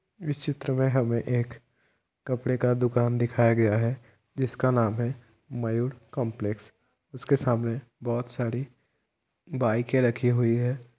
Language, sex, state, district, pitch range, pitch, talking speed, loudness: Hindi, male, Bihar, Kishanganj, 115-130 Hz, 120 Hz, 135 wpm, -27 LUFS